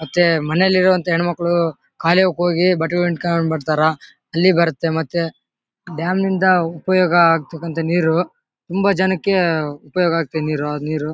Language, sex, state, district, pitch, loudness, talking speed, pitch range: Kannada, male, Karnataka, Bellary, 170 Hz, -18 LUFS, 135 wpm, 160-180 Hz